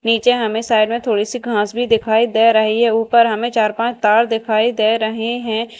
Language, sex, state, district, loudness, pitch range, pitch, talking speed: Hindi, female, Madhya Pradesh, Dhar, -16 LUFS, 220-235 Hz, 225 Hz, 215 wpm